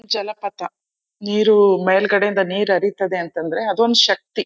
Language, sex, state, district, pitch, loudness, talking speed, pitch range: Kannada, female, Karnataka, Chamarajanagar, 200 Hz, -17 LUFS, 150 wpm, 190-215 Hz